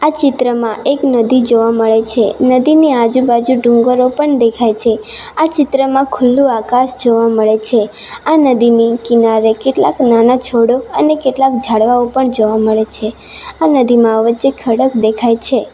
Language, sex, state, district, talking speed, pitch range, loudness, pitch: Gujarati, female, Gujarat, Valsad, 145 wpm, 225-260 Hz, -11 LUFS, 240 Hz